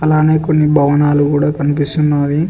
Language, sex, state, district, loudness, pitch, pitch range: Telugu, male, Telangana, Mahabubabad, -13 LUFS, 150 Hz, 145-155 Hz